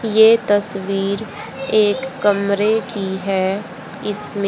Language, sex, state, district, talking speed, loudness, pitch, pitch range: Hindi, female, Haryana, Jhajjar, 95 wpm, -18 LUFS, 205 Hz, 195-215 Hz